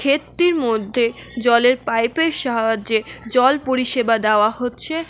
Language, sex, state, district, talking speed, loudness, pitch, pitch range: Bengali, female, West Bengal, Alipurduar, 105 wpm, -17 LUFS, 245 Hz, 225-275 Hz